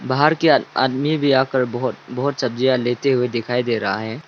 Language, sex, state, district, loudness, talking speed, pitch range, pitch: Hindi, male, Arunachal Pradesh, Lower Dibang Valley, -19 LUFS, 195 wpm, 120-140 Hz, 130 Hz